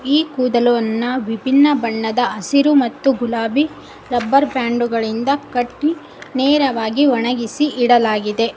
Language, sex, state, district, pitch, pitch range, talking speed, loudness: Kannada, female, Karnataka, Koppal, 245 Hz, 230-280 Hz, 100 wpm, -17 LUFS